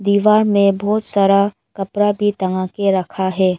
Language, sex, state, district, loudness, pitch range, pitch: Hindi, female, Arunachal Pradesh, Lower Dibang Valley, -16 LUFS, 190-205 Hz, 200 Hz